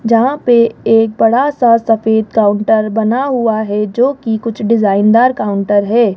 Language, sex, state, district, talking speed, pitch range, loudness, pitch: Hindi, female, Rajasthan, Jaipur, 155 wpm, 215-235 Hz, -12 LUFS, 225 Hz